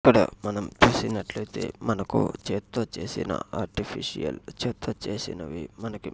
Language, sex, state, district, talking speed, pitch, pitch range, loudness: Telugu, male, Andhra Pradesh, Sri Satya Sai, 115 wpm, 105 Hz, 100-110 Hz, -28 LUFS